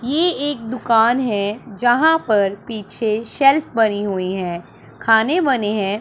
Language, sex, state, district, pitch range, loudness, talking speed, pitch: Hindi, male, Punjab, Pathankot, 205-260 Hz, -18 LUFS, 140 wpm, 225 Hz